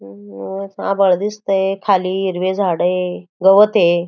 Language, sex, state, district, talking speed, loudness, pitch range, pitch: Marathi, female, Maharashtra, Aurangabad, 145 wpm, -16 LUFS, 180-195 Hz, 190 Hz